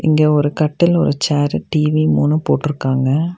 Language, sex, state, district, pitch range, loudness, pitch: Tamil, female, Tamil Nadu, Nilgiris, 145-155 Hz, -16 LUFS, 150 Hz